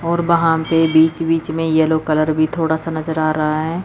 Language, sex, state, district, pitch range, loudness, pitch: Hindi, female, Chandigarh, Chandigarh, 155-165 Hz, -17 LUFS, 160 Hz